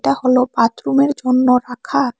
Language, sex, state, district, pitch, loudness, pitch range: Bengali, female, Tripura, West Tripura, 255 Hz, -16 LUFS, 245-255 Hz